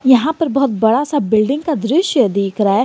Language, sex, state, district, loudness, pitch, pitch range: Hindi, male, Jharkhand, Garhwa, -15 LUFS, 260 Hz, 220-295 Hz